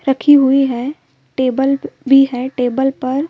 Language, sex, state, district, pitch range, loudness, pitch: Hindi, female, Madhya Pradesh, Bhopal, 255-275 Hz, -14 LUFS, 270 Hz